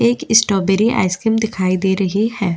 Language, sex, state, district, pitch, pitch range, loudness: Hindi, female, Chhattisgarh, Bastar, 200 Hz, 190-225 Hz, -16 LUFS